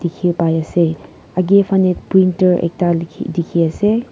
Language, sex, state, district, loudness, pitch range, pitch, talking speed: Nagamese, female, Nagaland, Kohima, -16 LUFS, 170-190 Hz, 175 Hz, 145 wpm